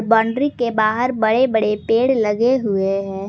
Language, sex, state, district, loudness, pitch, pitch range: Hindi, female, Jharkhand, Garhwa, -18 LUFS, 225 Hz, 210-245 Hz